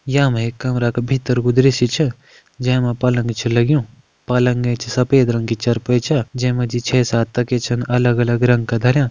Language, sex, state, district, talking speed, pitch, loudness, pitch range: Kumaoni, male, Uttarakhand, Uttarkashi, 215 wpm, 125 Hz, -17 LUFS, 120-125 Hz